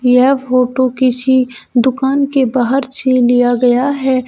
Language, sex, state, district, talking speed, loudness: Hindi, female, Uttar Pradesh, Shamli, 140 wpm, -13 LUFS